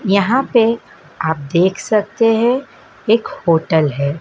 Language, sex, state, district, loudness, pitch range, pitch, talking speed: Hindi, male, Madhya Pradesh, Dhar, -16 LUFS, 160-230 Hz, 200 Hz, 130 wpm